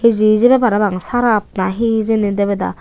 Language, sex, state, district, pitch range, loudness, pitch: Chakma, female, Tripura, Unakoti, 200-230 Hz, -15 LUFS, 215 Hz